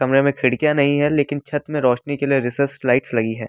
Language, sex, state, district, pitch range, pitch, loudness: Hindi, male, Delhi, New Delhi, 125-145 Hz, 140 Hz, -19 LUFS